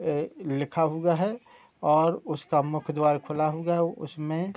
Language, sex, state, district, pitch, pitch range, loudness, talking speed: Hindi, male, Uttar Pradesh, Muzaffarnagar, 155 Hz, 150-170 Hz, -27 LUFS, 170 wpm